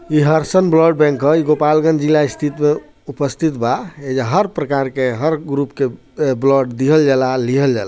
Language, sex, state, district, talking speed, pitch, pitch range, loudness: Bhojpuri, male, Bihar, Gopalganj, 190 wpm, 145 Hz, 135-155 Hz, -16 LUFS